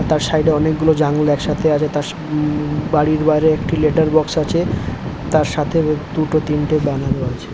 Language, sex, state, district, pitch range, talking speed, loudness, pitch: Bengali, male, West Bengal, Dakshin Dinajpur, 150-155 Hz, 160 wpm, -17 LUFS, 155 Hz